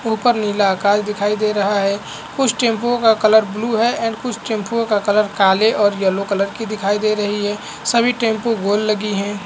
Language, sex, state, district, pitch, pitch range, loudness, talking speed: Hindi, male, Bihar, Lakhisarai, 215 Hz, 205-225 Hz, -17 LUFS, 205 wpm